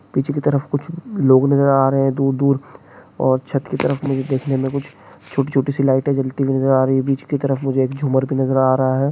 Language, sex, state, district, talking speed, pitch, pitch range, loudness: Hindi, male, West Bengal, Jhargram, 255 wpm, 135 Hz, 130-140 Hz, -18 LUFS